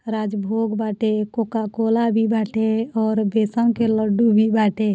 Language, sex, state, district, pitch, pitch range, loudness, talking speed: Bhojpuri, female, Uttar Pradesh, Deoria, 220 Hz, 215-225 Hz, -20 LUFS, 155 wpm